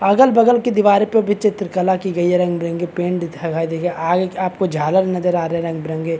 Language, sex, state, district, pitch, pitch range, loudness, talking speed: Hindi, male, Uttar Pradesh, Varanasi, 180 Hz, 170-200 Hz, -17 LUFS, 215 wpm